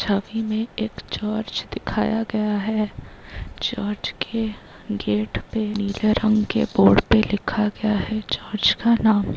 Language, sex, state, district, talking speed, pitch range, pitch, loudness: Hindi, female, Bihar, Begusarai, 140 wpm, 205-220 Hz, 215 Hz, -22 LUFS